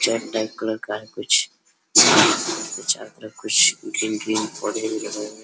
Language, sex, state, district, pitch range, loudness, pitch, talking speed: Hindi, male, Jharkhand, Sahebganj, 105-110 Hz, -19 LUFS, 110 Hz, 165 wpm